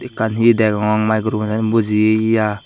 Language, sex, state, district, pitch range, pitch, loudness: Chakma, male, Tripura, Dhalai, 105-110 Hz, 110 Hz, -16 LUFS